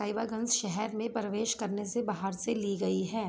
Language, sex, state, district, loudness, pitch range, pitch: Hindi, female, Jharkhand, Sahebganj, -32 LUFS, 205-225 Hz, 215 Hz